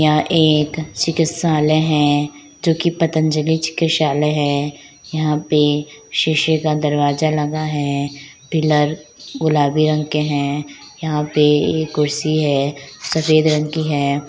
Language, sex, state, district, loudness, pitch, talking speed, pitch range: Hindi, male, Bihar, Jahanabad, -17 LUFS, 150 Hz, 125 wpm, 145-155 Hz